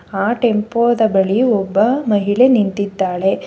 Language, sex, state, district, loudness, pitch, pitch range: Kannada, female, Karnataka, Bangalore, -15 LUFS, 210 Hz, 195-235 Hz